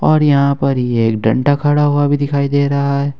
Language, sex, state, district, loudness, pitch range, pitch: Hindi, male, Jharkhand, Ranchi, -14 LUFS, 135-145 Hz, 140 Hz